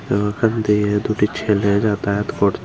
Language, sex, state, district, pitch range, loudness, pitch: Bengali, female, Tripura, Unakoti, 100-105 Hz, -19 LUFS, 105 Hz